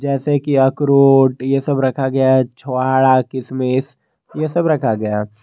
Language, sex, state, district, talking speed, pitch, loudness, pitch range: Hindi, male, Jharkhand, Garhwa, 155 wpm, 135 Hz, -16 LUFS, 130-140 Hz